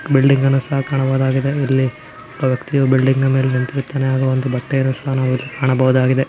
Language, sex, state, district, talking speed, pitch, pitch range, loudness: Kannada, male, Karnataka, Bijapur, 155 wpm, 135 Hz, 130-135 Hz, -17 LUFS